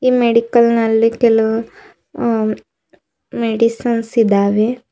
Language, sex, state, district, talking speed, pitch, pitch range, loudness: Kannada, female, Karnataka, Bidar, 75 wpm, 230 Hz, 225-235 Hz, -15 LUFS